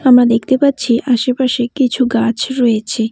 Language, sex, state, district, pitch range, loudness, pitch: Bengali, female, West Bengal, Cooch Behar, 235-260 Hz, -14 LUFS, 245 Hz